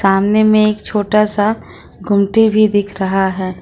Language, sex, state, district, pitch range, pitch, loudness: Hindi, female, Jharkhand, Ranchi, 195-215 Hz, 205 Hz, -14 LUFS